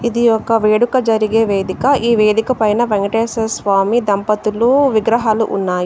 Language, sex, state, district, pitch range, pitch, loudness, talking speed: Telugu, female, Telangana, Adilabad, 210-235 Hz, 220 Hz, -15 LUFS, 135 wpm